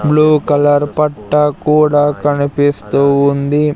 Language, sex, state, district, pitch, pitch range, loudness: Telugu, male, Andhra Pradesh, Sri Satya Sai, 145 Hz, 145-150 Hz, -13 LUFS